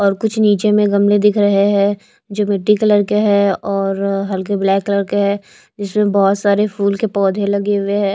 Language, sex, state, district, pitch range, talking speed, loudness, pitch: Hindi, female, Maharashtra, Mumbai Suburban, 200-205 Hz, 205 wpm, -15 LUFS, 200 Hz